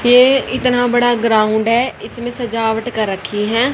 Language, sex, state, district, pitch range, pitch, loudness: Hindi, female, Haryana, Rohtak, 220-245 Hz, 240 Hz, -15 LUFS